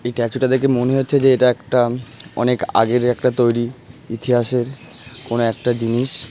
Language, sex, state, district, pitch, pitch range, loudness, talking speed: Bengali, male, West Bengal, Malda, 125 Hz, 120-130 Hz, -18 LUFS, 150 wpm